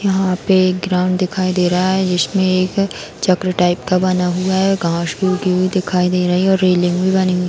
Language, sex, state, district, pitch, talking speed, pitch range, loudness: Hindi, female, Bihar, Darbhanga, 185 Hz, 250 wpm, 180-190 Hz, -16 LUFS